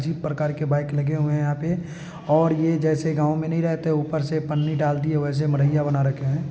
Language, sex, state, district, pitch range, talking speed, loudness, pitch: Hindi, male, Bihar, East Champaran, 145-160 Hz, 260 wpm, -23 LUFS, 155 Hz